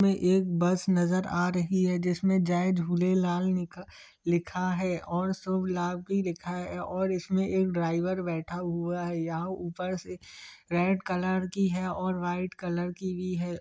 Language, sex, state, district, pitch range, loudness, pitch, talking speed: Hindi, male, Chhattisgarh, Bilaspur, 175-185 Hz, -29 LUFS, 180 Hz, 170 wpm